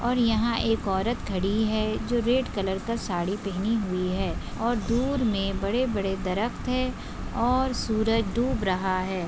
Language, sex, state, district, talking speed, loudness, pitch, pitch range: Hindi, female, Maharashtra, Solapur, 170 wpm, -27 LUFS, 220 Hz, 195-240 Hz